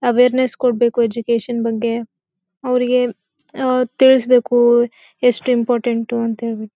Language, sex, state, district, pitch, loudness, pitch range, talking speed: Kannada, female, Karnataka, Bellary, 240 Hz, -17 LUFS, 230-250 Hz, 90 wpm